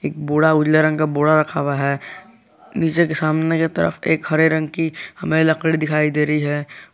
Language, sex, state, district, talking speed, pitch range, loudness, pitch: Hindi, male, Jharkhand, Garhwa, 205 wpm, 150-160 Hz, -18 LUFS, 155 Hz